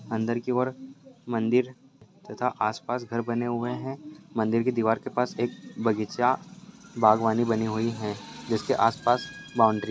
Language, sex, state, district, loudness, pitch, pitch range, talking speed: Hindi, male, Bihar, Saharsa, -27 LUFS, 120 Hz, 110-125 Hz, 170 wpm